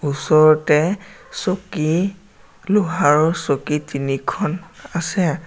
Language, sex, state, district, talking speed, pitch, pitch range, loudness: Assamese, male, Assam, Sonitpur, 65 wpm, 170 Hz, 155-195 Hz, -19 LUFS